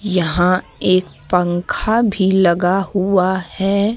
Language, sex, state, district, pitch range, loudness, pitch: Hindi, female, Jharkhand, Deoghar, 180-195 Hz, -16 LUFS, 185 Hz